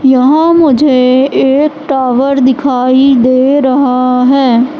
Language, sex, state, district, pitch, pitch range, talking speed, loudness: Hindi, female, Madhya Pradesh, Katni, 265 Hz, 255-275 Hz, 100 wpm, -9 LUFS